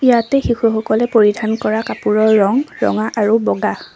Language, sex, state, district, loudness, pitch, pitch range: Assamese, female, Assam, Sonitpur, -15 LUFS, 220 Hz, 215-235 Hz